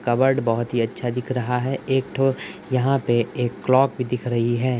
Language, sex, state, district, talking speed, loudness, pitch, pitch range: Hindi, male, Uttar Pradesh, Budaun, 215 wpm, -22 LUFS, 125 Hz, 120-130 Hz